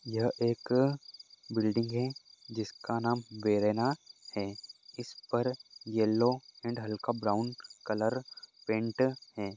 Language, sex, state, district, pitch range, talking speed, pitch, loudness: Hindi, male, Goa, North and South Goa, 110-125 Hz, 105 wpm, 115 Hz, -33 LUFS